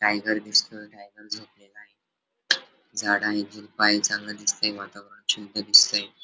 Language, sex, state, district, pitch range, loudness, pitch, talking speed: Marathi, male, Maharashtra, Dhule, 100-105 Hz, -22 LUFS, 105 Hz, 95 wpm